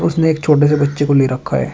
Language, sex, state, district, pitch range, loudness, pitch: Hindi, male, Uttar Pradesh, Shamli, 140-155 Hz, -14 LUFS, 145 Hz